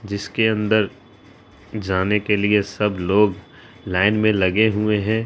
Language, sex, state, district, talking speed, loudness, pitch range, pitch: Hindi, female, Bihar, Araria, 135 wpm, -19 LUFS, 100-110 Hz, 105 Hz